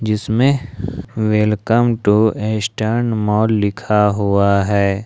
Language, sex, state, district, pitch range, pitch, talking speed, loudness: Hindi, male, Jharkhand, Ranchi, 100-110 Hz, 105 Hz, 95 wpm, -16 LUFS